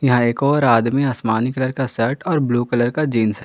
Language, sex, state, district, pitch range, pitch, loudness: Hindi, male, Jharkhand, Garhwa, 115-140 Hz, 125 Hz, -18 LUFS